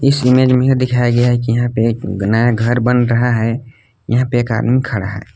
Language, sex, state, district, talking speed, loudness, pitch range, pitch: Hindi, male, Jharkhand, Palamu, 235 wpm, -14 LUFS, 115-125 Hz, 120 Hz